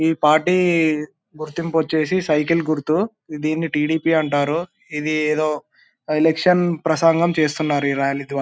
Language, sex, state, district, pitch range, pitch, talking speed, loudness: Telugu, male, Andhra Pradesh, Anantapur, 150-165 Hz, 155 Hz, 130 wpm, -19 LUFS